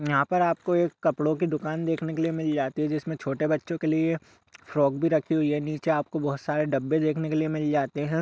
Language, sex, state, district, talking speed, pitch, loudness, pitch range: Hindi, male, Bihar, Darbhanga, 240 wpm, 155 Hz, -26 LUFS, 150-160 Hz